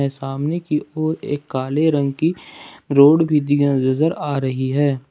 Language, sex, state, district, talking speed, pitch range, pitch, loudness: Hindi, male, Jharkhand, Ranchi, 150 wpm, 135-155 Hz, 145 Hz, -18 LUFS